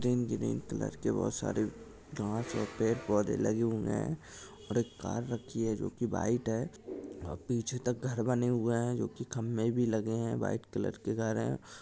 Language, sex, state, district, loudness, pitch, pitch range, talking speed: Angika, male, Bihar, Supaul, -34 LUFS, 115 Hz, 110-120 Hz, 195 wpm